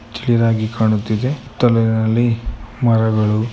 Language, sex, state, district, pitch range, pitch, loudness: Kannada, male, Karnataka, Mysore, 110-120 Hz, 115 Hz, -17 LUFS